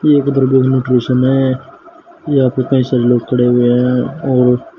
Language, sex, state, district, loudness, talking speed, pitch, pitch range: Hindi, male, Uttar Pradesh, Shamli, -13 LUFS, 175 wpm, 130 Hz, 125-135 Hz